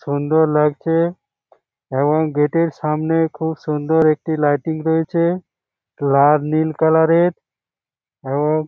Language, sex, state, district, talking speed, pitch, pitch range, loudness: Bengali, male, West Bengal, Jhargram, 115 wpm, 155 Hz, 145-160 Hz, -17 LUFS